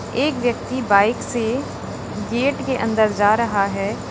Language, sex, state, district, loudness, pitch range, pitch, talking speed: Hindi, female, Uttar Pradesh, Lalitpur, -20 LUFS, 205-255 Hz, 230 Hz, 145 wpm